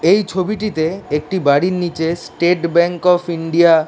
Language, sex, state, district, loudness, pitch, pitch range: Bengali, male, West Bengal, Dakshin Dinajpur, -16 LUFS, 170 Hz, 165-185 Hz